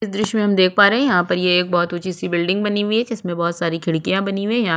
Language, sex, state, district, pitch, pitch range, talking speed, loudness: Hindi, female, Chhattisgarh, Sukma, 185 Hz, 175-210 Hz, 350 wpm, -18 LUFS